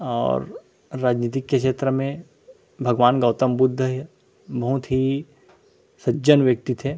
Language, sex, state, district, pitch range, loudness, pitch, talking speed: Chhattisgarhi, male, Chhattisgarh, Rajnandgaon, 125-140 Hz, -21 LUFS, 130 Hz, 120 wpm